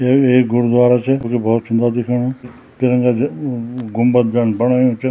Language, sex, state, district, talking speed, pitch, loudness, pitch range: Garhwali, male, Uttarakhand, Tehri Garhwal, 175 wpm, 125 Hz, -16 LUFS, 120-125 Hz